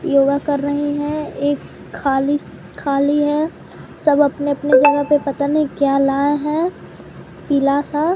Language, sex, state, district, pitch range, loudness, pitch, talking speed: Hindi, female, Bihar, Patna, 280-295 Hz, -18 LUFS, 290 Hz, 140 wpm